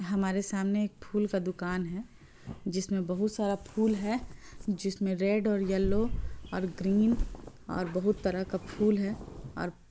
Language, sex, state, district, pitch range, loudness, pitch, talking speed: Hindi, female, Bihar, Gopalganj, 190-210 Hz, -31 LUFS, 195 Hz, 155 wpm